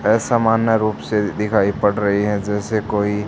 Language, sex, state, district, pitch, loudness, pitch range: Hindi, male, Haryana, Charkhi Dadri, 105 Hz, -18 LUFS, 105-110 Hz